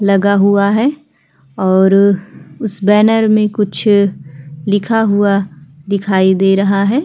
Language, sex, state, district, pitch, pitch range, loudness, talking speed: Hindi, female, Chhattisgarh, Kabirdham, 200 Hz, 190-210 Hz, -13 LUFS, 120 wpm